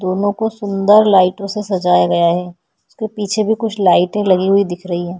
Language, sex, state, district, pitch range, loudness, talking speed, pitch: Hindi, female, Chhattisgarh, Korba, 180-210 Hz, -15 LUFS, 210 wpm, 195 Hz